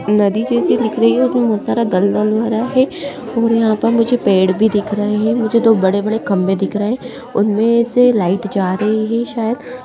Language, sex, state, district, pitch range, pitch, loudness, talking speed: Hindi, female, Bihar, Madhepura, 210-235 Hz, 225 Hz, -15 LUFS, 215 wpm